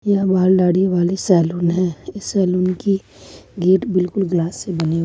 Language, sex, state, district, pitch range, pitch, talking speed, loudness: Hindi, female, Jharkhand, Ranchi, 175-190 Hz, 185 Hz, 180 wpm, -18 LUFS